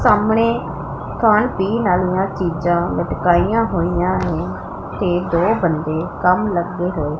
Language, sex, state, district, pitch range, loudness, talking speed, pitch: Punjabi, female, Punjab, Pathankot, 170-205 Hz, -18 LUFS, 115 wpm, 180 Hz